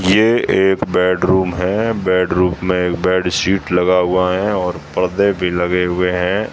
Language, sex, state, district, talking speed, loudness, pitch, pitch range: Hindi, male, Rajasthan, Jaisalmer, 155 wpm, -16 LUFS, 90 Hz, 90-95 Hz